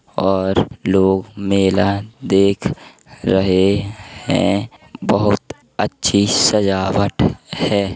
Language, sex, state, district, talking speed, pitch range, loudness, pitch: Hindi, male, Uttar Pradesh, Hamirpur, 75 wpm, 95-100 Hz, -17 LUFS, 100 Hz